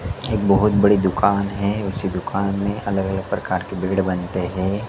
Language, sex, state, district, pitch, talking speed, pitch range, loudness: Hindi, male, Madhya Pradesh, Dhar, 100 Hz, 185 wpm, 95-100 Hz, -20 LUFS